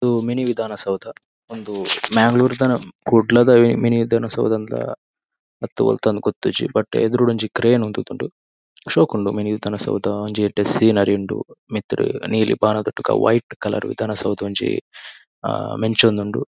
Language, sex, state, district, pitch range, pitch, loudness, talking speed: Tulu, male, Karnataka, Dakshina Kannada, 105-120 Hz, 110 Hz, -19 LUFS, 140 wpm